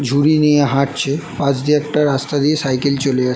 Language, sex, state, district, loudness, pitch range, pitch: Bengali, male, West Bengal, North 24 Parganas, -16 LUFS, 135-150 Hz, 140 Hz